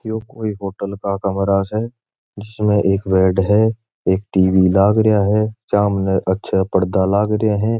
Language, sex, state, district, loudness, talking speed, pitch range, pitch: Marwari, male, Rajasthan, Churu, -17 LUFS, 145 wpm, 95-110 Hz, 100 Hz